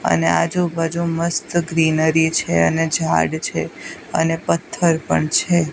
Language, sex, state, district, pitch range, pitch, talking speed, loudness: Gujarati, female, Gujarat, Gandhinagar, 155-170 Hz, 165 Hz, 125 wpm, -18 LUFS